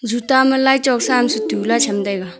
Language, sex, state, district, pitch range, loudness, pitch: Wancho, female, Arunachal Pradesh, Longding, 200-265 Hz, -16 LUFS, 240 Hz